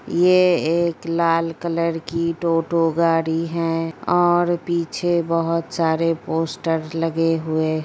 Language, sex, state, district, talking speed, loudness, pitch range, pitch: Hindi, female, Uttar Pradesh, Gorakhpur, 120 wpm, -20 LUFS, 165-170 Hz, 165 Hz